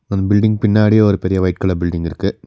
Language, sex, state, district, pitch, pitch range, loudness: Tamil, male, Tamil Nadu, Nilgiris, 100 Hz, 90-105 Hz, -15 LUFS